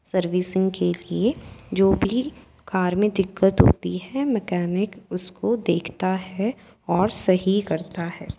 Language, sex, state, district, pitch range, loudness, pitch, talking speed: Hindi, female, Uttar Pradesh, Jyotiba Phule Nagar, 180-210 Hz, -23 LUFS, 190 Hz, 130 wpm